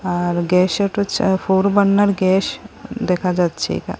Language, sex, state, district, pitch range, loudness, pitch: Bengali, female, Assam, Hailakandi, 180-200 Hz, -17 LUFS, 190 Hz